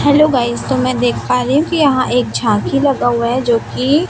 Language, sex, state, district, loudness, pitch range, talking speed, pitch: Hindi, female, Chhattisgarh, Raipur, -14 LUFS, 205-285 Hz, 250 wpm, 250 Hz